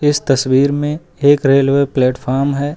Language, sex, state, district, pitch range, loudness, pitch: Hindi, male, Uttar Pradesh, Lucknow, 135-145 Hz, -14 LUFS, 140 Hz